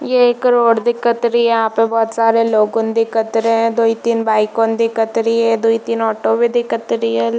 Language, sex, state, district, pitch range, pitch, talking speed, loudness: Hindi, female, Chhattisgarh, Bilaspur, 225-230 Hz, 230 Hz, 220 wpm, -15 LUFS